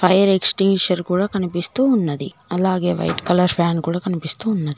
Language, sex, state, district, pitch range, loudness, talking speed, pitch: Telugu, female, Telangana, Mahabubabad, 175-195 Hz, -18 LUFS, 150 wpm, 180 Hz